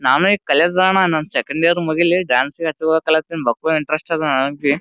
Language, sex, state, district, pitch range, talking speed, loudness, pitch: Kannada, male, Karnataka, Gulbarga, 150-170 Hz, 185 wpm, -17 LUFS, 160 Hz